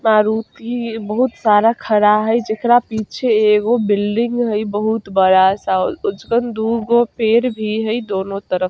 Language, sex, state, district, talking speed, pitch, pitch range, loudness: Bajjika, female, Bihar, Vaishali, 145 wpm, 220 Hz, 210-235 Hz, -16 LUFS